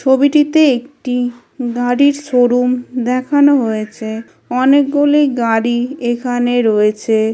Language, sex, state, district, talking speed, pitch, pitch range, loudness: Bengali, female, West Bengal, Kolkata, 100 wpm, 245 Hz, 240-275 Hz, -14 LUFS